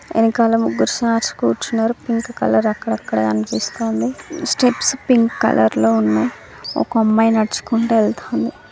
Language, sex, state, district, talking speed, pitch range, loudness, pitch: Telugu, female, Telangana, Karimnagar, 115 wpm, 205-235 Hz, -17 LUFS, 225 Hz